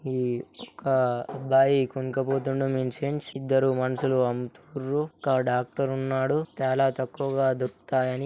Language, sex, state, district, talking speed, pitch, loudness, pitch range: Telugu, male, Telangana, Nalgonda, 100 wpm, 135 Hz, -26 LUFS, 130-135 Hz